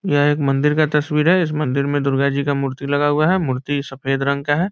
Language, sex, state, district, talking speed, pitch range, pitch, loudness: Hindi, male, Bihar, Muzaffarpur, 265 wpm, 140-150 Hz, 145 Hz, -18 LUFS